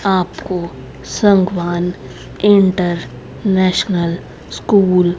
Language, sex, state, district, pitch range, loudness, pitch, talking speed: Hindi, female, Haryana, Rohtak, 175-195 Hz, -15 LUFS, 185 Hz, 60 wpm